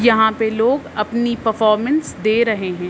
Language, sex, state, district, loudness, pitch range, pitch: Hindi, female, Madhya Pradesh, Bhopal, -17 LUFS, 215-235 Hz, 220 Hz